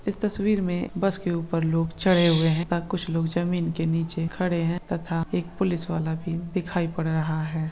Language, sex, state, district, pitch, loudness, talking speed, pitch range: Hindi, male, Andhra Pradesh, Krishna, 170 Hz, -25 LUFS, 210 wpm, 165-180 Hz